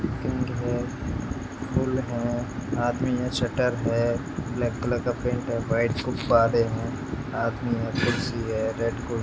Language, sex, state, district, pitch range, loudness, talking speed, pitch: Hindi, male, Uttar Pradesh, Etah, 115-125 Hz, -26 LUFS, 150 wpm, 120 Hz